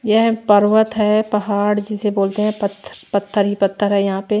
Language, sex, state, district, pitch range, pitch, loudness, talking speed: Hindi, female, Chhattisgarh, Raipur, 200-215 Hz, 210 Hz, -17 LUFS, 205 wpm